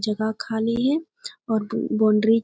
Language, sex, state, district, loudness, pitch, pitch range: Hindi, female, Bihar, Gopalganj, -23 LUFS, 220 Hz, 215-230 Hz